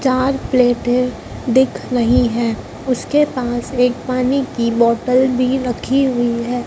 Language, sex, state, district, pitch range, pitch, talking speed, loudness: Hindi, male, Madhya Pradesh, Dhar, 240-260 Hz, 250 Hz, 135 wpm, -17 LUFS